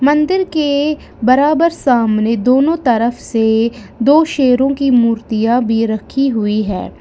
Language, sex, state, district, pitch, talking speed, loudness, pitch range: Hindi, female, Uttar Pradesh, Lalitpur, 250 Hz, 130 wpm, -14 LUFS, 225-285 Hz